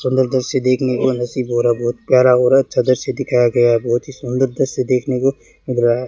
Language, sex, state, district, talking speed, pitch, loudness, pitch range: Hindi, male, Rajasthan, Bikaner, 255 wpm, 130 Hz, -16 LUFS, 120-130 Hz